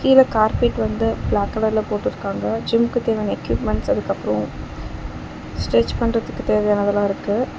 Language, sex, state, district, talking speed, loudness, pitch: Tamil, female, Tamil Nadu, Chennai, 120 wpm, -20 LUFS, 210 Hz